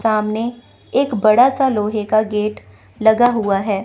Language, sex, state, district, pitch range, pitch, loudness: Hindi, female, Chandigarh, Chandigarh, 210-235 Hz, 215 Hz, -17 LUFS